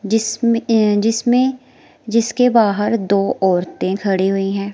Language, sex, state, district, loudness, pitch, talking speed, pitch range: Hindi, female, Himachal Pradesh, Shimla, -16 LUFS, 220 Hz, 125 wpm, 200-230 Hz